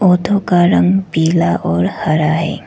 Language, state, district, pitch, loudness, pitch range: Hindi, Arunachal Pradesh, Lower Dibang Valley, 170 Hz, -14 LUFS, 160-185 Hz